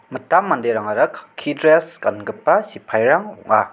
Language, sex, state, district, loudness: Garo, male, Meghalaya, South Garo Hills, -18 LUFS